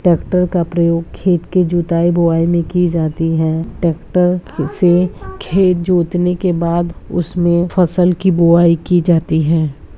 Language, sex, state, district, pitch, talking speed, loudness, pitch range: Hindi, female, Bihar, Purnia, 175 Hz, 145 wpm, -14 LUFS, 170-180 Hz